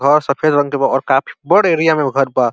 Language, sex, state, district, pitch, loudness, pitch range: Bhojpuri, male, Uttar Pradesh, Deoria, 140 Hz, -14 LUFS, 135-155 Hz